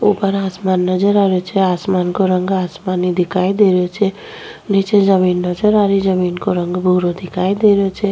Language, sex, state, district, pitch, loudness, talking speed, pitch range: Rajasthani, female, Rajasthan, Nagaur, 190 Hz, -15 LUFS, 200 wpm, 180-200 Hz